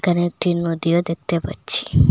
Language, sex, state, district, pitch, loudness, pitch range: Bengali, female, Assam, Hailakandi, 170 Hz, -18 LUFS, 165-175 Hz